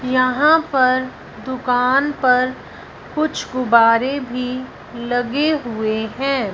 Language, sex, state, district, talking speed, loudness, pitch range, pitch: Hindi, female, Punjab, Fazilka, 90 wpm, -18 LUFS, 245-275 Hz, 255 Hz